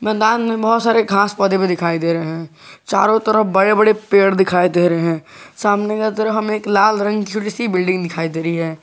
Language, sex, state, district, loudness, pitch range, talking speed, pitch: Hindi, male, Jharkhand, Garhwa, -16 LUFS, 175-215 Hz, 245 wpm, 200 Hz